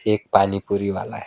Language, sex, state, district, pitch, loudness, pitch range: Hindi, male, West Bengal, Alipurduar, 100 Hz, -21 LUFS, 100-105 Hz